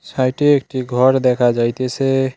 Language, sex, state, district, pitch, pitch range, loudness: Bengali, male, West Bengal, Cooch Behar, 130 Hz, 125-135 Hz, -16 LUFS